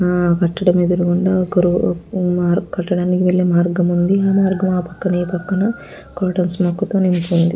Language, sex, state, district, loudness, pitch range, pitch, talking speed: Telugu, female, Andhra Pradesh, Guntur, -17 LUFS, 175-185 Hz, 180 Hz, 95 wpm